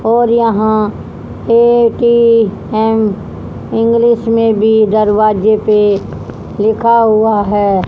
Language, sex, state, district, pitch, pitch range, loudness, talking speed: Hindi, female, Haryana, Rohtak, 220 Hz, 215-230 Hz, -11 LUFS, 85 wpm